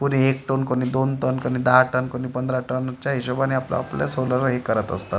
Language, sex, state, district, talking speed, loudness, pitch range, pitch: Marathi, male, Maharashtra, Gondia, 210 wpm, -22 LUFS, 125-135 Hz, 130 Hz